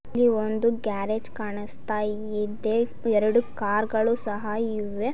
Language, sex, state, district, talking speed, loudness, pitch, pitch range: Kannada, female, Karnataka, Gulbarga, 115 wpm, -26 LUFS, 215 Hz, 210-230 Hz